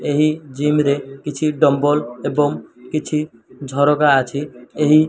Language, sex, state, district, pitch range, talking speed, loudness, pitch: Odia, male, Odisha, Malkangiri, 140-150 Hz, 130 wpm, -18 LUFS, 145 Hz